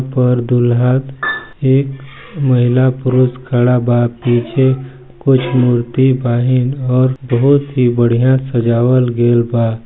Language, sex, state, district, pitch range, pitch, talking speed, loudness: Hindi, male, Chhattisgarh, Balrampur, 120-130 Hz, 125 Hz, 110 wpm, -13 LUFS